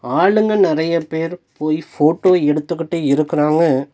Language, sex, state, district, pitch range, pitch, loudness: Tamil, male, Tamil Nadu, Nilgiris, 155-170 Hz, 165 Hz, -16 LUFS